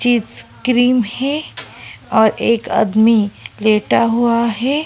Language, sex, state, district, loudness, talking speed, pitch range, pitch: Hindi, female, Goa, North and South Goa, -15 LUFS, 110 wpm, 220-245 Hz, 235 Hz